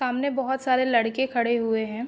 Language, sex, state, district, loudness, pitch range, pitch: Hindi, female, Uttar Pradesh, Ghazipur, -24 LUFS, 230-265 Hz, 245 Hz